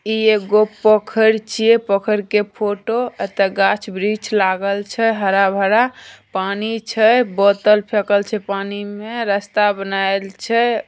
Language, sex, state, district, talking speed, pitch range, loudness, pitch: Angika, female, Bihar, Begusarai, 145 wpm, 200-220 Hz, -17 LUFS, 210 Hz